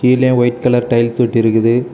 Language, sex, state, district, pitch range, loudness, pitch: Tamil, male, Tamil Nadu, Kanyakumari, 120-125 Hz, -13 LUFS, 120 Hz